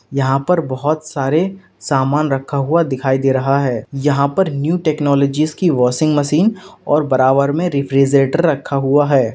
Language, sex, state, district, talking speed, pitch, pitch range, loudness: Hindi, male, Uttar Pradesh, Lalitpur, 160 wpm, 140 Hz, 135-155 Hz, -16 LUFS